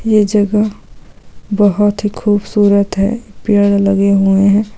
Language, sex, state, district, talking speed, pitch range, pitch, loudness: Hindi, female, Goa, North and South Goa, 125 wpm, 200-210 Hz, 205 Hz, -13 LUFS